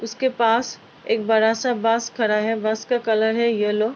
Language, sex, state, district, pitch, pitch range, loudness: Hindi, female, Uttar Pradesh, Ghazipur, 225 Hz, 220-235 Hz, -21 LUFS